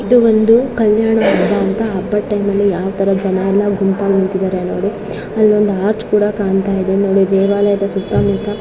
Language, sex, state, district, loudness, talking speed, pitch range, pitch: Kannada, female, Karnataka, Dharwad, -14 LUFS, 160 wpm, 195-210 Hz, 200 Hz